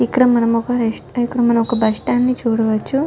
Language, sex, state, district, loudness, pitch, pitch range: Telugu, female, Telangana, Karimnagar, -17 LUFS, 235 Hz, 230-245 Hz